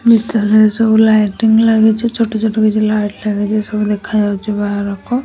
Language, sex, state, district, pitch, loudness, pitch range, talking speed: Odia, male, Odisha, Nuapada, 215 Hz, -13 LUFS, 210-220 Hz, 135 wpm